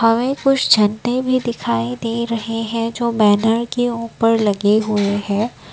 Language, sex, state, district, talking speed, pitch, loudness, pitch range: Hindi, female, Assam, Kamrup Metropolitan, 155 wpm, 225 Hz, -17 LUFS, 210-235 Hz